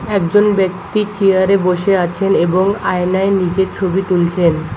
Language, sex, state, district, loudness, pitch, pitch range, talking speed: Bengali, male, West Bengal, Alipurduar, -14 LUFS, 190 Hz, 180-195 Hz, 125 wpm